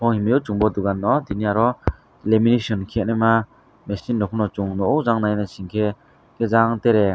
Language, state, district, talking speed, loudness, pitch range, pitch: Kokborok, Tripura, West Tripura, 145 wpm, -21 LUFS, 105-115 Hz, 110 Hz